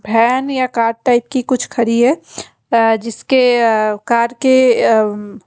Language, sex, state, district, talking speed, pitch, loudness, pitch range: Hindi, female, Haryana, Rohtak, 155 wpm, 235 Hz, -14 LUFS, 225-255 Hz